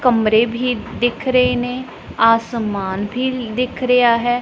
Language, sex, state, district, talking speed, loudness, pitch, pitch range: Punjabi, female, Punjab, Pathankot, 135 wpm, -17 LUFS, 245 Hz, 230-250 Hz